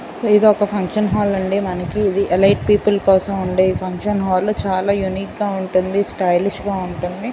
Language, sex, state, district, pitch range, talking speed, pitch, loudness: Telugu, female, Andhra Pradesh, Guntur, 185-205 Hz, 155 wpm, 195 Hz, -18 LUFS